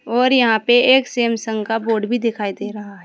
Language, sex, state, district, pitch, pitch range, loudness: Hindi, female, Uttar Pradesh, Saharanpur, 225 Hz, 210-245 Hz, -17 LUFS